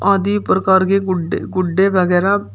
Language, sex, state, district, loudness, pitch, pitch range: Hindi, male, Uttar Pradesh, Shamli, -16 LUFS, 190 Hz, 185-195 Hz